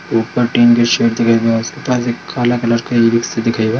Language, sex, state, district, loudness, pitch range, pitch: Hindi, male, Bihar, Darbhanga, -14 LUFS, 115-120 Hz, 115 Hz